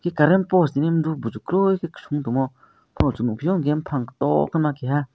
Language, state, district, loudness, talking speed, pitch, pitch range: Kokborok, Tripura, West Tripura, -22 LUFS, 165 wpm, 150 Hz, 135-170 Hz